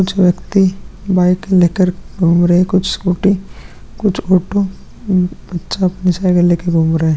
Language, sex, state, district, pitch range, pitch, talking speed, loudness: Hindi, male, Bihar, Vaishali, 175-190 Hz, 185 Hz, 175 wpm, -14 LUFS